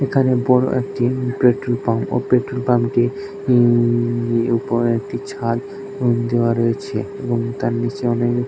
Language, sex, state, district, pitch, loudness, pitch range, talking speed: Bengali, male, West Bengal, Jhargram, 125 Hz, -19 LUFS, 120-130 Hz, 135 wpm